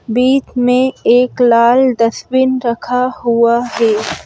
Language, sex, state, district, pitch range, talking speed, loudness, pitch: Hindi, female, Madhya Pradesh, Bhopal, 235-255 Hz, 110 wpm, -13 LUFS, 245 Hz